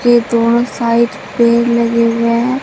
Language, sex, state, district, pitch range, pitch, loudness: Hindi, female, Bihar, Katihar, 230-240 Hz, 235 Hz, -13 LUFS